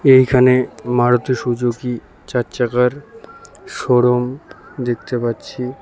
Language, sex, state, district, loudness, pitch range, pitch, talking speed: Bengali, male, West Bengal, Cooch Behar, -17 LUFS, 120-130 Hz, 125 Hz, 80 wpm